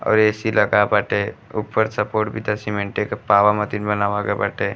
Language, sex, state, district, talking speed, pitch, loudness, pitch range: Bhojpuri, male, Uttar Pradesh, Gorakhpur, 190 wpm, 105 Hz, -20 LUFS, 105-110 Hz